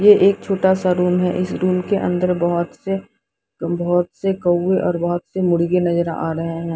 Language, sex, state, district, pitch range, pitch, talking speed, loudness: Hindi, female, Odisha, Sambalpur, 175-190 Hz, 180 Hz, 205 wpm, -19 LUFS